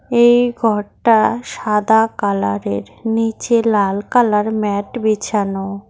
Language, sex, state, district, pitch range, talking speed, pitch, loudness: Bengali, female, West Bengal, Cooch Behar, 200-230 Hz, 90 wpm, 215 Hz, -16 LUFS